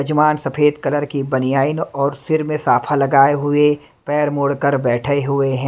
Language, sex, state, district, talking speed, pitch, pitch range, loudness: Hindi, male, Delhi, New Delhi, 170 wpm, 140 Hz, 140-150 Hz, -17 LUFS